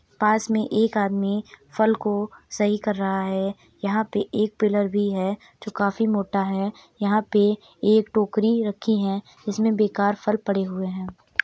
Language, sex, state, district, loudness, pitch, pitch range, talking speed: Hindi, female, Uttar Pradesh, Varanasi, -23 LUFS, 205 Hz, 200-215 Hz, 165 wpm